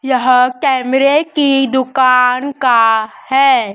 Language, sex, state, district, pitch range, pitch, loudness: Hindi, male, Madhya Pradesh, Dhar, 250-275 Hz, 260 Hz, -12 LUFS